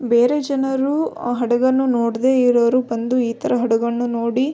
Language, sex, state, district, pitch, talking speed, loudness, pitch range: Kannada, female, Karnataka, Belgaum, 245 Hz, 130 wpm, -18 LUFS, 235-265 Hz